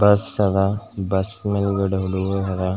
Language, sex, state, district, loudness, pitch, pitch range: Kannada, male, Karnataka, Gulbarga, -21 LUFS, 95 Hz, 95-100 Hz